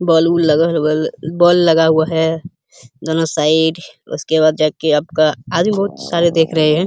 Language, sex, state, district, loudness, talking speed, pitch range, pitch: Hindi, male, Uttar Pradesh, Hamirpur, -15 LUFS, 150 wpm, 155-170 Hz, 160 Hz